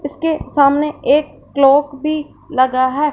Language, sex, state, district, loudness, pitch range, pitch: Hindi, female, Punjab, Fazilka, -15 LUFS, 275-300 Hz, 290 Hz